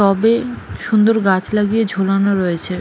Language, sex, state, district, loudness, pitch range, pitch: Bengali, female, West Bengal, Malda, -16 LUFS, 190-220 Hz, 200 Hz